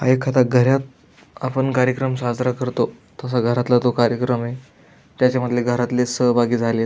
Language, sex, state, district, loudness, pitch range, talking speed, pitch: Marathi, male, Maharashtra, Aurangabad, -19 LUFS, 120-130 Hz, 130 wpm, 125 Hz